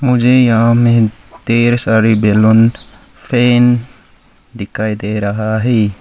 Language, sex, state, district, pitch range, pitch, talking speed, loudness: Hindi, male, Arunachal Pradesh, Lower Dibang Valley, 110-120 Hz, 115 Hz, 110 wpm, -12 LUFS